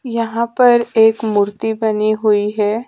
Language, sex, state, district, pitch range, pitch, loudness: Hindi, female, Madhya Pradesh, Dhar, 215-230 Hz, 220 Hz, -15 LUFS